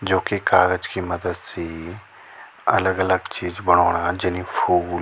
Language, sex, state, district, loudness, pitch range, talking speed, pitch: Garhwali, male, Uttarakhand, Tehri Garhwal, -21 LUFS, 85-95 Hz, 130 wpm, 90 Hz